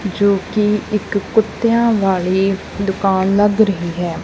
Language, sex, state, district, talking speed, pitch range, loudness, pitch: Punjabi, female, Punjab, Kapurthala, 125 wpm, 190-210 Hz, -16 LUFS, 200 Hz